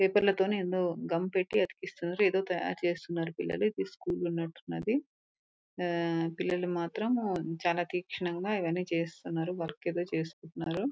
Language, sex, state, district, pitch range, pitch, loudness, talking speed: Telugu, female, Telangana, Nalgonda, 165-185 Hz, 175 Hz, -32 LUFS, 120 wpm